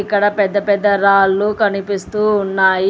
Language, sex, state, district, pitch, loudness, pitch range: Telugu, female, Telangana, Hyderabad, 200 Hz, -15 LUFS, 195-205 Hz